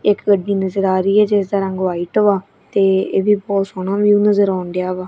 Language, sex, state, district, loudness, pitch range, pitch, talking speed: Punjabi, female, Punjab, Kapurthala, -16 LUFS, 190-205 Hz, 195 Hz, 250 wpm